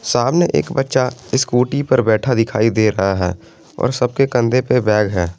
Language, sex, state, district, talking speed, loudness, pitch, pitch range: Hindi, male, Jharkhand, Garhwa, 190 wpm, -16 LUFS, 125 Hz, 110-130 Hz